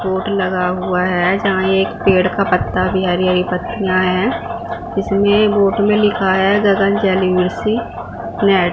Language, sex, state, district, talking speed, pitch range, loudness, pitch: Hindi, female, Punjab, Fazilka, 160 wpm, 185-200 Hz, -15 LUFS, 190 Hz